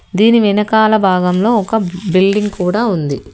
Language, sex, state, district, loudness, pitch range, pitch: Telugu, female, Telangana, Hyderabad, -13 LUFS, 185-220 Hz, 205 Hz